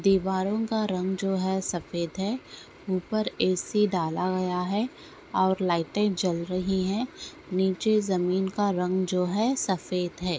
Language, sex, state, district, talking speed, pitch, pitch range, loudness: Hindi, female, Bihar, Bhagalpur, 145 wpm, 190 Hz, 180-210 Hz, -27 LUFS